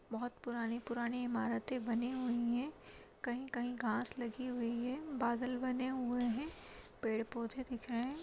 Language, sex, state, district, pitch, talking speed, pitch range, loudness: Hindi, female, Chhattisgarh, Kabirdham, 245 Hz, 140 wpm, 235-255 Hz, -39 LUFS